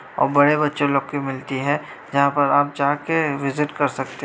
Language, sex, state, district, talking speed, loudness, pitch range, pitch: Hindi, female, Bihar, Sitamarhi, 225 wpm, -20 LUFS, 140-145 Hz, 145 Hz